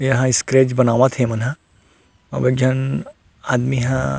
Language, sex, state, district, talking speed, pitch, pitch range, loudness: Chhattisgarhi, male, Chhattisgarh, Rajnandgaon, 185 wpm, 125 Hz, 110-130 Hz, -18 LUFS